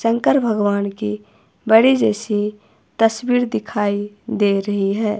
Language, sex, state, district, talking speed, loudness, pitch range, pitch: Hindi, female, Himachal Pradesh, Shimla, 115 wpm, -18 LUFS, 200-225 Hz, 210 Hz